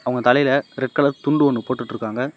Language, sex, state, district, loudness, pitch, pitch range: Tamil, male, Tamil Nadu, Namakkal, -19 LUFS, 130 Hz, 125-140 Hz